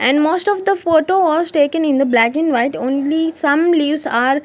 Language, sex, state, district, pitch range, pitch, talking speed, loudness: English, female, Maharashtra, Gondia, 275-330 Hz, 305 Hz, 215 wpm, -15 LUFS